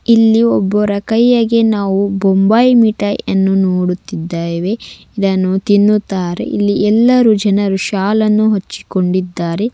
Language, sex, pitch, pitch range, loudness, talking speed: Kannada, female, 205 Hz, 190-220 Hz, -13 LUFS, 80 wpm